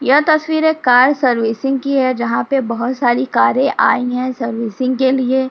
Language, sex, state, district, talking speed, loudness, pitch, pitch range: Hindi, female, Uttar Pradesh, Jyotiba Phule Nagar, 185 wpm, -15 LUFS, 255 Hz, 245-270 Hz